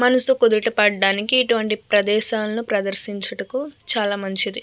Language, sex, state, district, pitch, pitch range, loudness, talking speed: Telugu, female, Andhra Pradesh, Krishna, 215 Hz, 205-235 Hz, -18 LUFS, 115 wpm